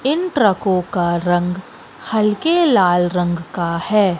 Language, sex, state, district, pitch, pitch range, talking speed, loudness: Hindi, female, Madhya Pradesh, Katni, 185 Hz, 175-215 Hz, 130 wpm, -17 LUFS